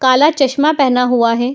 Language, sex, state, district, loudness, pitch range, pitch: Hindi, female, Uttar Pradesh, Muzaffarnagar, -13 LUFS, 250-280 Hz, 260 Hz